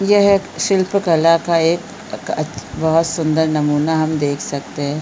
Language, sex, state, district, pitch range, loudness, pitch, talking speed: Hindi, female, Chhattisgarh, Balrampur, 155-190 Hz, -17 LUFS, 165 Hz, 180 wpm